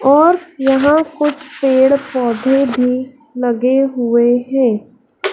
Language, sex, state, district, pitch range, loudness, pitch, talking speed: Hindi, female, Madhya Pradesh, Dhar, 245-290 Hz, -14 LUFS, 265 Hz, 100 wpm